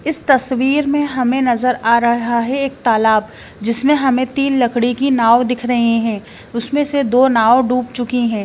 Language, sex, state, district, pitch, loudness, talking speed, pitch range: Hindi, female, Bihar, Katihar, 245 Hz, -15 LUFS, 185 wpm, 235-265 Hz